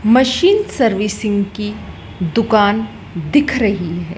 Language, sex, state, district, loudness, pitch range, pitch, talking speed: Hindi, female, Madhya Pradesh, Dhar, -16 LUFS, 200-240 Hz, 210 Hz, 100 wpm